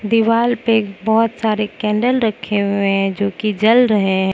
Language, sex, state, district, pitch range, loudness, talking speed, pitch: Hindi, female, Mizoram, Aizawl, 200-225 Hz, -16 LUFS, 180 wpm, 215 Hz